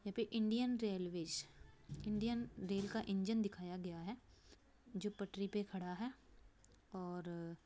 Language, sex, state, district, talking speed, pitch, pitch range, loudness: Hindi, female, Bihar, Begusarai, 135 wpm, 200 Hz, 180-220 Hz, -43 LUFS